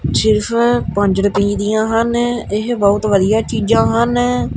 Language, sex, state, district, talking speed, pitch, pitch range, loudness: Punjabi, male, Punjab, Kapurthala, 120 wpm, 205 Hz, 195-230 Hz, -15 LUFS